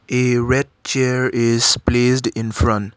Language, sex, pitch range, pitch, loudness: English, male, 115-130 Hz, 120 Hz, -17 LUFS